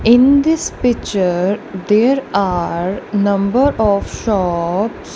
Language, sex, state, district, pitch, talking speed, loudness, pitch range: English, female, Punjab, Kapurthala, 205 Hz, 95 wpm, -15 LUFS, 190-240 Hz